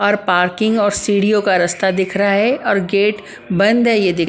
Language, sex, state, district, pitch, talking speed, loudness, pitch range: Hindi, female, Punjab, Pathankot, 200 Hz, 225 wpm, -15 LUFS, 190-210 Hz